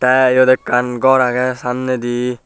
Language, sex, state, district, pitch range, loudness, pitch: Chakma, male, Tripura, Dhalai, 125-130 Hz, -15 LUFS, 125 Hz